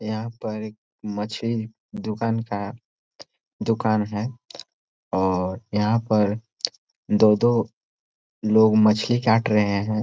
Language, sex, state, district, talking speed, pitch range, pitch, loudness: Hindi, male, Chhattisgarh, Korba, 100 wpm, 105-115 Hz, 110 Hz, -23 LUFS